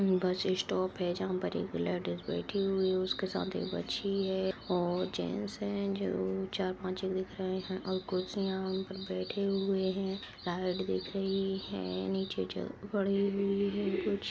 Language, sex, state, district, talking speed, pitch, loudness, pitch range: Hindi, female, Bihar, Supaul, 170 wpm, 190 Hz, -34 LUFS, 175-195 Hz